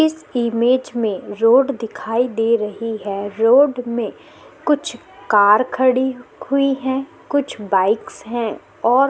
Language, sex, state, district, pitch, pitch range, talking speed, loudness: Hindi, female, Chhattisgarh, Korba, 240 Hz, 220-265 Hz, 125 wpm, -18 LUFS